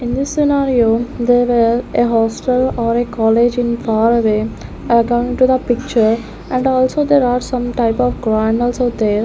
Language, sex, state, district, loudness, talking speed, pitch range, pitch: English, female, Chandigarh, Chandigarh, -15 LUFS, 170 wpm, 230-250 Hz, 240 Hz